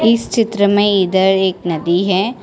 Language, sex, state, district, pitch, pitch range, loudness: Hindi, female, Telangana, Hyderabad, 195 Hz, 185-210 Hz, -14 LUFS